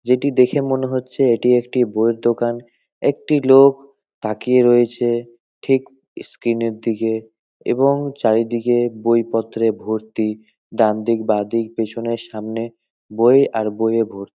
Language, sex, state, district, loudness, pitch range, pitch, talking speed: Bengali, male, West Bengal, North 24 Parganas, -18 LUFS, 110-125 Hz, 115 Hz, 140 wpm